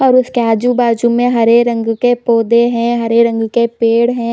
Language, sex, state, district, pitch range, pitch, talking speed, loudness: Hindi, female, Chhattisgarh, Bilaspur, 230-240 Hz, 235 Hz, 195 wpm, -12 LUFS